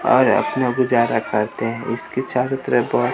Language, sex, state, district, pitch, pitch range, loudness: Hindi, male, Bihar, West Champaran, 125 Hz, 115-130 Hz, -19 LUFS